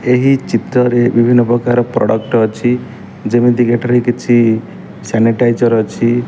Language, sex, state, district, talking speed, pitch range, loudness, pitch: Odia, male, Odisha, Malkangiri, 105 wpm, 115-120 Hz, -13 LUFS, 120 Hz